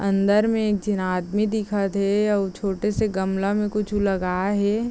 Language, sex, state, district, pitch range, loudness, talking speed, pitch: Chhattisgarhi, female, Chhattisgarh, Raigarh, 195-210 Hz, -23 LUFS, 185 wpm, 205 Hz